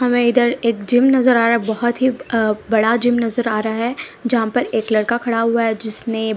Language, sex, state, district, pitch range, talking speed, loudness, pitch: Hindi, female, Punjab, Pathankot, 220-245 Hz, 245 wpm, -17 LUFS, 235 Hz